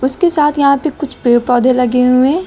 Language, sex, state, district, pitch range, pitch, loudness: Hindi, female, Uttar Pradesh, Lucknow, 250-295 Hz, 260 Hz, -12 LUFS